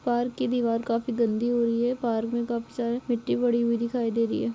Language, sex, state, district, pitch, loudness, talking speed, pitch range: Hindi, female, Chhattisgarh, Sarguja, 235 Hz, -26 LUFS, 250 wpm, 230-240 Hz